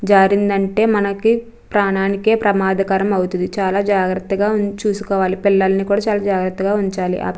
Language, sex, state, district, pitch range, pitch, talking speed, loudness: Telugu, female, Andhra Pradesh, Chittoor, 190-205 Hz, 200 Hz, 120 wpm, -17 LUFS